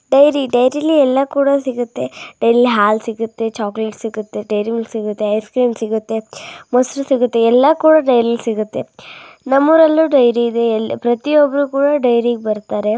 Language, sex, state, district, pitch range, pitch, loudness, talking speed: Kannada, female, Karnataka, Raichur, 220-275 Hz, 240 Hz, -15 LUFS, 125 wpm